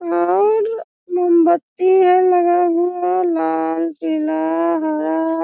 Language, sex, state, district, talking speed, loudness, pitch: Hindi, female, Bihar, Sitamarhi, 100 wpm, -17 LUFS, 345 Hz